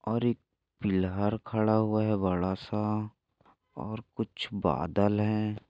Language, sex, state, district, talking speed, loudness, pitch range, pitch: Hindi, male, Maharashtra, Aurangabad, 115 wpm, -30 LUFS, 100-110 Hz, 105 Hz